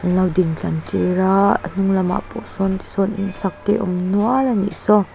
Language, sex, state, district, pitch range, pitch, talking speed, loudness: Mizo, female, Mizoram, Aizawl, 180-200 Hz, 195 Hz, 235 wpm, -19 LUFS